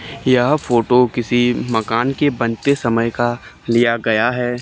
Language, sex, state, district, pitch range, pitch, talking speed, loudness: Hindi, male, Haryana, Charkhi Dadri, 115-130 Hz, 120 Hz, 145 wpm, -17 LUFS